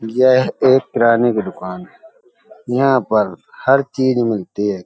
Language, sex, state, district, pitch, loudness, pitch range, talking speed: Hindi, male, Uttar Pradesh, Hamirpur, 125 Hz, -16 LUFS, 105-135 Hz, 150 wpm